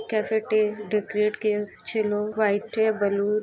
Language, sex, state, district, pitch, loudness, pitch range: Bengali, female, West Bengal, Dakshin Dinajpur, 215 Hz, -25 LUFS, 210-215 Hz